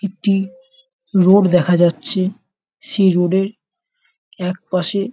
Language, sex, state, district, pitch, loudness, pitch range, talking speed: Bengali, male, West Bengal, North 24 Parganas, 195 Hz, -16 LUFS, 180-230 Hz, 115 wpm